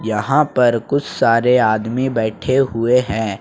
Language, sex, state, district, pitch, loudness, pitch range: Hindi, male, Jharkhand, Ranchi, 120 Hz, -16 LUFS, 110-130 Hz